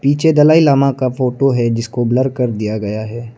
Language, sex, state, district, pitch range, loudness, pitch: Hindi, male, Arunachal Pradesh, Lower Dibang Valley, 115-135 Hz, -14 LUFS, 125 Hz